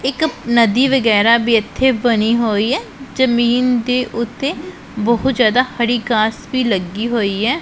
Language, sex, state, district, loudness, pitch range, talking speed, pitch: Punjabi, female, Punjab, Pathankot, -16 LUFS, 225-255 Hz, 150 wpm, 235 Hz